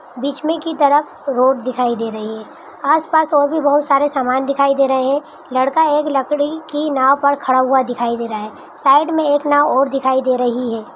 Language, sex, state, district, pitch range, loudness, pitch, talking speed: Hindi, female, Bihar, Araria, 255-295 Hz, -16 LUFS, 275 Hz, 220 wpm